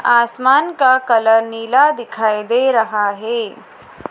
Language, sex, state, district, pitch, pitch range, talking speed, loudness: Hindi, female, Madhya Pradesh, Dhar, 235 Hz, 220-255 Hz, 115 wpm, -15 LUFS